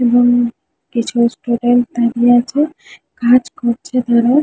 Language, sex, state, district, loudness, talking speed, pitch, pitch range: Bengali, female, West Bengal, Jhargram, -15 LUFS, 110 wpm, 245 Hz, 235-250 Hz